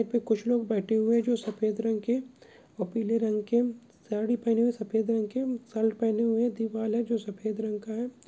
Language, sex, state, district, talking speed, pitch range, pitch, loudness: Hindi, male, Bihar, Bhagalpur, 230 wpm, 220-235 Hz, 225 Hz, -29 LUFS